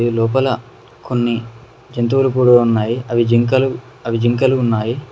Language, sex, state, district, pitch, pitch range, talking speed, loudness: Telugu, male, Telangana, Mahabubabad, 120 Hz, 115-130 Hz, 115 wpm, -16 LUFS